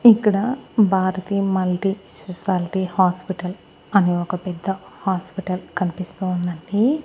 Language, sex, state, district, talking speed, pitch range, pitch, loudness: Telugu, female, Andhra Pradesh, Annamaya, 95 wpm, 180-195 Hz, 185 Hz, -22 LUFS